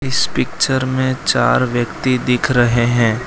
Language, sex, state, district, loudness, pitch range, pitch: Hindi, male, Gujarat, Valsad, -16 LUFS, 120-130 Hz, 125 Hz